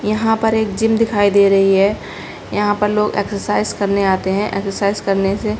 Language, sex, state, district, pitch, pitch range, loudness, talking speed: Hindi, female, Uttar Pradesh, Budaun, 205 Hz, 195-210 Hz, -16 LUFS, 205 wpm